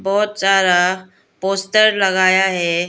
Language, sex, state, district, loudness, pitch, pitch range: Hindi, female, Arunachal Pradesh, Lower Dibang Valley, -15 LUFS, 190 Hz, 185-195 Hz